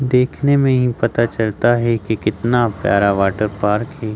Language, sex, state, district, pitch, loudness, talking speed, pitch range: Hindi, male, Chhattisgarh, Sukma, 115 Hz, -17 LUFS, 175 wpm, 105-120 Hz